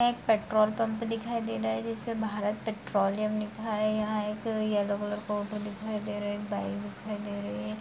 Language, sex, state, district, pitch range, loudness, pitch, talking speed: Hindi, female, Bihar, Saharsa, 205-220 Hz, -31 LUFS, 210 Hz, 225 wpm